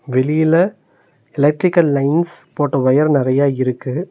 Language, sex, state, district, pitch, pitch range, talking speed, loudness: Tamil, male, Tamil Nadu, Nilgiris, 145 Hz, 130-165 Hz, 100 wpm, -16 LUFS